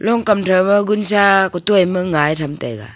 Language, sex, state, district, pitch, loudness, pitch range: Wancho, female, Arunachal Pradesh, Longding, 190 Hz, -15 LUFS, 155-205 Hz